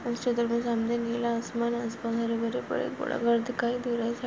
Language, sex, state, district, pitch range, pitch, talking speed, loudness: Hindi, female, Goa, North and South Goa, 230-240 Hz, 235 Hz, 100 wpm, -29 LUFS